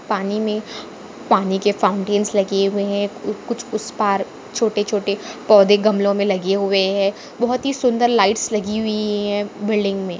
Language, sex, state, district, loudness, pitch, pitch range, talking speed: Hindi, female, Maharashtra, Dhule, -19 LUFS, 205 Hz, 200-215 Hz, 170 wpm